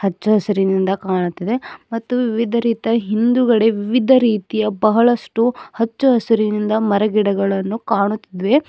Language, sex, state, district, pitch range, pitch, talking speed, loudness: Kannada, female, Karnataka, Bidar, 205-235 Hz, 220 Hz, 95 wpm, -17 LUFS